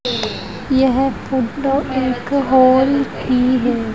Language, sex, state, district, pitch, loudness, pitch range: Hindi, female, Haryana, Rohtak, 260 Hz, -16 LUFS, 250-270 Hz